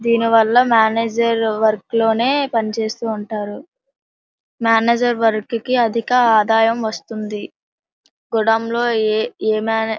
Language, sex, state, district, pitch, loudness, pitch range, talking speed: Telugu, female, Andhra Pradesh, Srikakulam, 225 Hz, -17 LUFS, 220-235 Hz, 115 wpm